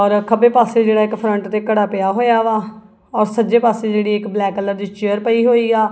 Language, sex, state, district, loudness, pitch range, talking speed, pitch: Punjabi, female, Punjab, Kapurthala, -16 LUFS, 210-230 Hz, 245 wpm, 215 Hz